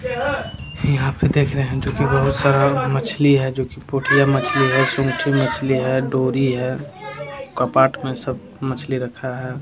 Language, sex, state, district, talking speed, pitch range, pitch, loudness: Hindi, male, Bihar, Jamui, 175 wpm, 130-140 Hz, 135 Hz, -19 LUFS